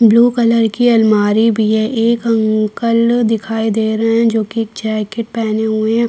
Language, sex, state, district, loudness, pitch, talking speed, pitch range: Hindi, female, Chhattisgarh, Kabirdham, -14 LUFS, 225 Hz, 185 wpm, 220-230 Hz